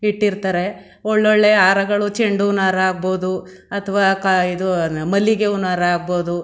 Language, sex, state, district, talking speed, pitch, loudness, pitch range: Kannada, female, Karnataka, Mysore, 95 wpm, 190 Hz, -17 LUFS, 185-205 Hz